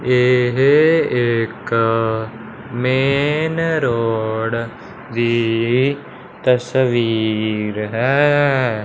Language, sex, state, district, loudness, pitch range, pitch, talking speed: Hindi, male, Punjab, Fazilka, -17 LUFS, 115-135 Hz, 120 Hz, 45 wpm